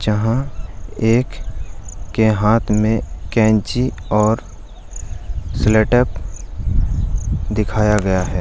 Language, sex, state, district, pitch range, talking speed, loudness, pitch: Hindi, male, Bihar, Jahanabad, 90-110 Hz, 95 wpm, -18 LUFS, 100 Hz